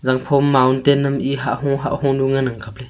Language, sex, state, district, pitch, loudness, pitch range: Wancho, male, Arunachal Pradesh, Longding, 135 Hz, -18 LUFS, 130-140 Hz